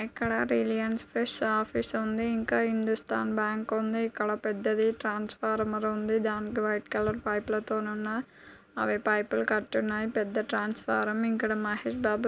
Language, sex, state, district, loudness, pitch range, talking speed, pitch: Telugu, female, Andhra Pradesh, Guntur, -29 LUFS, 215-220 Hz, 135 wpm, 215 Hz